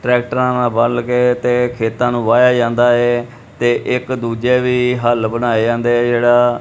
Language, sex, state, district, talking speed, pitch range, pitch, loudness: Punjabi, male, Punjab, Kapurthala, 165 wpm, 120-125 Hz, 120 Hz, -15 LUFS